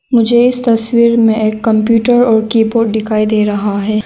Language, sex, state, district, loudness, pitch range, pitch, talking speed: Hindi, female, Arunachal Pradesh, Lower Dibang Valley, -11 LUFS, 215-235 Hz, 225 Hz, 190 wpm